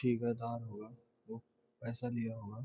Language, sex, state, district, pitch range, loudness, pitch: Hindi, male, Bihar, Gopalganj, 115-120 Hz, -41 LUFS, 115 Hz